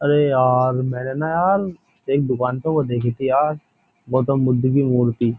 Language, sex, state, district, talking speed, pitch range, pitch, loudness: Hindi, male, Uttar Pradesh, Jyotiba Phule Nagar, 190 wpm, 125-145 Hz, 130 Hz, -19 LUFS